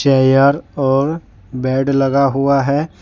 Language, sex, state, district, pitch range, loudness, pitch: Hindi, male, Jharkhand, Deoghar, 135-140 Hz, -15 LUFS, 135 Hz